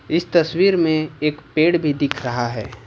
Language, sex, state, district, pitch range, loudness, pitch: Hindi, male, Jharkhand, Ranchi, 130-165 Hz, -19 LUFS, 150 Hz